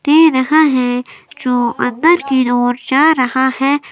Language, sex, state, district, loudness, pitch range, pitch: Hindi, female, Himachal Pradesh, Shimla, -13 LUFS, 250-305 Hz, 265 Hz